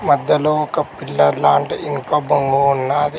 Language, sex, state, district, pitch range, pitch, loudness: Telugu, male, Telangana, Mahabubabad, 130-150 Hz, 140 Hz, -17 LUFS